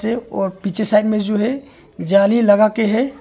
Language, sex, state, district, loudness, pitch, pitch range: Hindi, male, Arunachal Pradesh, Longding, -17 LUFS, 215 Hz, 205-230 Hz